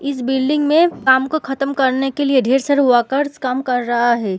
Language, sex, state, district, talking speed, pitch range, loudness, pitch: Hindi, female, Bihar, Samastipur, 220 wpm, 250-285 Hz, -16 LUFS, 265 Hz